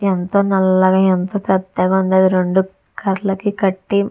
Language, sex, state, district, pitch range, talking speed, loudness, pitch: Telugu, female, Andhra Pradesh, Visakhapatnam, 185-195 Hz, 130 wpm, -16 LUFS, 190 Hz